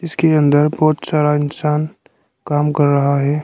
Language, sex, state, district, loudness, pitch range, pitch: Hindi, male, Arunachal Pradesh, Lower Dibang Valley, -15 LUFS, 145-155 Hz, 150 Hz